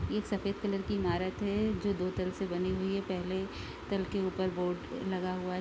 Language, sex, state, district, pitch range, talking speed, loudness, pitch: Hindi, female, Bihar, East Champaran, 185-200 Hz, 225 wpm, -34 LUFS, 190 Hz